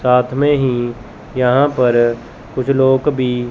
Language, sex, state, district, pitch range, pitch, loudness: Hindi, male, Chandigarh, Chandigarh, 120-130 Hz, 125 Hz, -15 LUFS